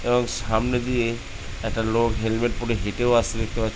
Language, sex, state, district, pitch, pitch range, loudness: Bengali, male, West Bengal, Jhargram, 115 Hz, 110-120 Hz, -24 LUFS